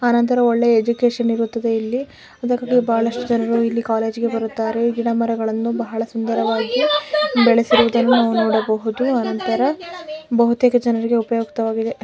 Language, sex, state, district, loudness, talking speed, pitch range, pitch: Kannada, female, Karnataka, Dharwad, -18 LUFS, 110 wpm, 225-245 Hz, 235 Hz